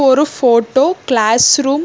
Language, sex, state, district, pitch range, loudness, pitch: Tamil, female, Karnataka, Bangalore, 240-290 Hz, -12 LUFS, 270 Hz